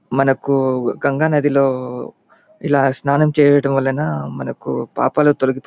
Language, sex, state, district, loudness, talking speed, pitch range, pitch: Telugu, male, Andhra Pradesh, Chittoor, -17 LUFS, 115 wpm, 130-145 Hz, 135 Hz